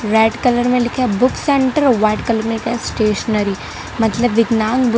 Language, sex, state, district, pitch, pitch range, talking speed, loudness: Hindi, female, Gujarat, Valsad, 230 Hz, 220-250 Hz, 190 wpm, -16 LUFS